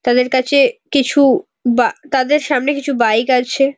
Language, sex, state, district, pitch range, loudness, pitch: Bengali, female, West Bengal, North 24 Parganas, 250-285 Hz, -15 LUFS, 275 Hz